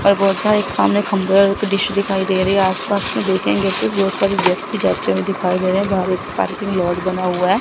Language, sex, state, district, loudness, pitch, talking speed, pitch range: Hindi, female, Chandigarh, Chandigarh, -17 LUFS, 195 Hz, 250 wpm, 185-200 Hz